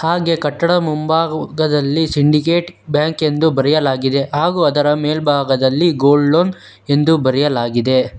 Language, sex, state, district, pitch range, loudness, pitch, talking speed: Kannada, male, Karnataka, Bangalore, 140-160 Hz, -15 LUFS, 150 Hz, 110 wpm